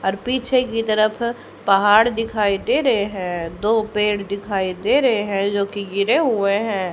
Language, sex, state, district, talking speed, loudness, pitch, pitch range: Hindi, female, Haryana, Jhajjar, 165 wpm, -19 LUFS, 205 Hz, 195-225 Hz